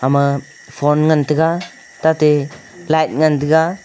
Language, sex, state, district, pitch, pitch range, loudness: Wancho, male, Arunachal Pradesh, Longding, 155 Hz, 145-160 Hz, -16 LUFS